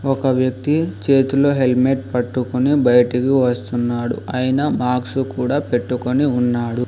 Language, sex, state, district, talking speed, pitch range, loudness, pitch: Telugu, male, Telangana, Hyderabad, 105 wpm, 125-135 Hz, -18 LUFS, 125 Hz